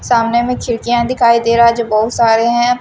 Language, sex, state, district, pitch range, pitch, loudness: Hindi, female, Maharashtra, Washim, 230-240 Hz, 235 Hz, -13 LUFS